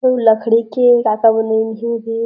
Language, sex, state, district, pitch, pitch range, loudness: Chhattisgarhi, female, Chhattisgarh, Jashpur, 225 Hz, 220-235 Hz, -14 LUFS